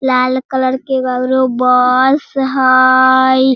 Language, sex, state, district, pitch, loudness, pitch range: Hindi, female, Bihar, Sitamarhi, 260 Hz, -12 LUFS, 255-260 Hz